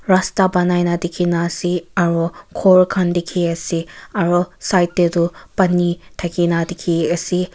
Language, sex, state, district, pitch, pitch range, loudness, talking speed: Nagamese, female, Nagaland, Kohima, 175 Hz, 170-180 Hz, -18 LUFS, 135 wpm